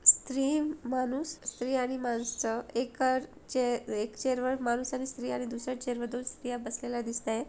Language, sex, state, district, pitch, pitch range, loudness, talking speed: Marathi, female, Maharashtra, Solapur, 250 Hz, 240-260 Hz, -32 LUFS, 170 wpm